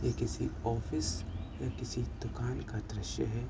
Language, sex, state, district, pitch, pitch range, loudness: Hindi, male, Uttar Pradesh, Budaun, 105 Hz, 85-115 Hz, -37 LUFS